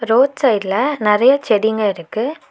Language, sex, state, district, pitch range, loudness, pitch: Tamil, female, Tamil Nadu, Nilgiris, 210-265 Hz, -16 LUFS, 225 Hz